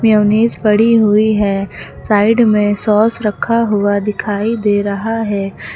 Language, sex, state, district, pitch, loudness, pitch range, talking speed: Hindi, female, Uttar Pradesh, Lucknow, 210 Hz, -14 LUFS, 205-225 Hz, 135 wpm